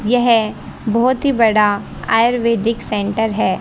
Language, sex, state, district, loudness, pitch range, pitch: Hindi, female, Haryana, Jhajjar, -16 LUFS, 215-235 Hz, 225 Hz